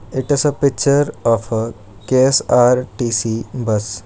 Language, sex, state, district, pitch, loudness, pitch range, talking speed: English, male, Karnataka, Bangalore, 120 Hz, -16 LUFS, 110-135 Hz, 90 wpm